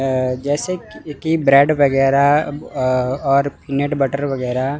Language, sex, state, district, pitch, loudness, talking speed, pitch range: Hindi, male, Chandigarh, Chandigarh, 140 Hz, -17 LUFS, 135 wpm, 135-145 Hz